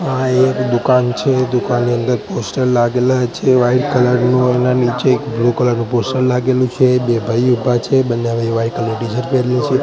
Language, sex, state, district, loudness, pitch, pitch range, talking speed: Gujarati, male, Gujarat, Gandhinagar, -15 LUFS, 125 Hz, 120-130 Hz, 200 wpm